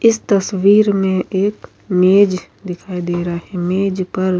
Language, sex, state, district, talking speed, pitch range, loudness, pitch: Urdu, female, Uttar Pradesh, Budaun, 165 wpm, 180-200 Hz, -16 LUFS, 190 Hz